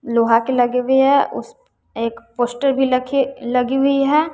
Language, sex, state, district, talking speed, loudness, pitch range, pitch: Hindi, female, Bihar, West Champaran, 180 wpm, -17 LUFS, 240-275 Hz, 260 Hz